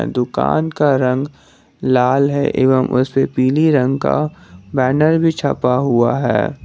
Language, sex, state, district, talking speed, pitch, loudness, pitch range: Hindi, male, Jharkhand, Garhwa, 145 wpm, 135 Hz, -16 LUFS, 125-145 Hz